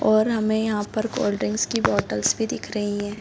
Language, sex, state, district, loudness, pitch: Hindi, female, Bihar, Sitamarhi, -23 LUFS, 210 Hz